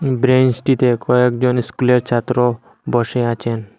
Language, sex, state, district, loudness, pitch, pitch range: Bengali, male, Assam, Hailakandi, -16 LUFS, 125 Hz, 120-125 Hz